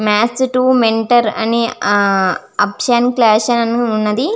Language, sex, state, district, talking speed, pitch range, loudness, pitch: Telugu, female, Andhra Pradesh, Visakhapatnam, 125 wpm, 215-240 Hz, -14 LUFS, 230 Hz